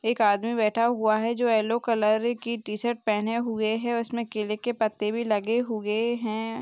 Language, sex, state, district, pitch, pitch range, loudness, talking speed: Hindi, female, Chhattisgarh, Balrampur, 225 Hz, 215-235 Hz, -26 LUFS, 200 wpm